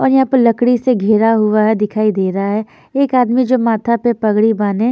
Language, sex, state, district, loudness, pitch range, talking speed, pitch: Hindi, female, Punjab, Fazilka, -14 LUFS, 215-245 Hz, 230 wpm, 225 Hz